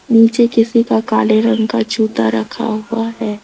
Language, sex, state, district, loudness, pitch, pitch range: Hindi, female, Rajasthan, Jaipur, -14 LUFS, 225 Hz, 215-230 Hz